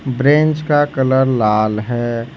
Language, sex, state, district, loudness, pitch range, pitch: Hindi, male, Jharkhand, Ranchi, -15 LUFS, 115-145 Hz, 130 Hz